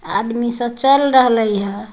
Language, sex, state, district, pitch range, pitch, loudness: Magahi, female, Bihar, Samastipur, 220-255 Hz, 235 Hz, -16 LUFS